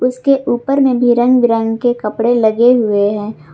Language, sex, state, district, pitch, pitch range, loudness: Hindi, female, Jharkhand, Garhwa, 240 Hz, 220-250 Hz, -13 LUFS